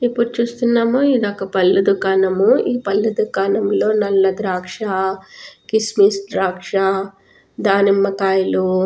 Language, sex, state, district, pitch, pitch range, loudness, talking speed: Telugu, female, Telangana, Nalgonda, 195 Hz, 190-220 Hz, -17 LUFS, 95 wpm